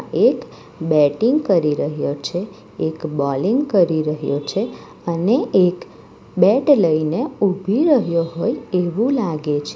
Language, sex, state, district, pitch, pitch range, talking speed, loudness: Gujarati, female, Gujarat, Valsad, 170 Hz, 150-220 Hz, 125 wpm, -18 LUFS